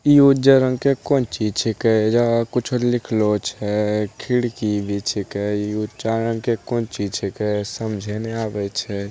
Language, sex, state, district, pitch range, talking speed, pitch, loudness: Angika, male, Bihar, Begusarai, 105-120 Hz, 150 wpm, 110 Hz, -20 LUFS